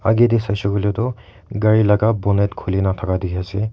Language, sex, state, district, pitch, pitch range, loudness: Nagamese, male, Nagaland, Kohima, 100 Hz, 95-110 Hz, -18 LUFS